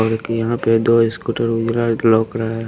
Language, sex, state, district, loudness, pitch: Hindi, male, Haryana, Rohtak, -17 LUFS, 115 Hz